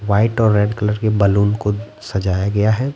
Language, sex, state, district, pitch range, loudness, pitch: Hindi, male, Bihar, Patna, 100-110 Hz, -17 LUFS, 105 Hz